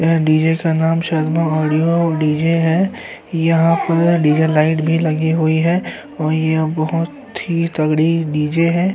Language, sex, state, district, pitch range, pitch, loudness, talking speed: Hindi, male, Uttar Pradesh, Hamirpur, 155-165 Hz, 160 Hz, -16 LUFS, 155 wpm